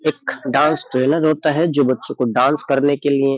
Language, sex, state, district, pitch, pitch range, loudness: Hindi, male, Uttar Pradesh, Jyotiba Phule Nagar, 140 Hz, 135-155 Hz, -17 LUFS